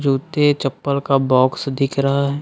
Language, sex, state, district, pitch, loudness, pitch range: Hindi, male, Chhattisgarh, Raipur, 140 Hz, -18 LUFS, 135-140 Hz